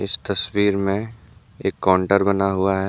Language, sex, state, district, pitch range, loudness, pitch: Hindi, male, Jharkhand, Deoghar, 95-100 Hz, -20 LUFS, 100 Hz